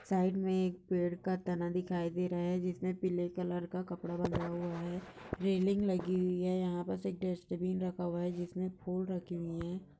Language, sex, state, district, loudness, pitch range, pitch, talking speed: Hindi, female, Maharashtra, Nagpur, -36 LUFS, 175-185 Hz, 180 Hz, 210 wpm